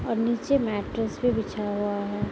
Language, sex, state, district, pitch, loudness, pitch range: Hindi, female, Bihar, Sitamarhi, 225 Hz, -27 LUFS, 205-235 Hz